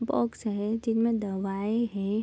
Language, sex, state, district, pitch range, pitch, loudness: Hindi, female, Bihar, Darbhanga, 205-230 Hz, 215 Hz, -29 LUFS